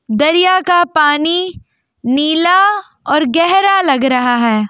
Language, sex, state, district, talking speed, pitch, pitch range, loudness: Hindi, female, Delhi, New Delhi, 115 wpm, 320 Hz, 270-370 Hz, -12 LUFS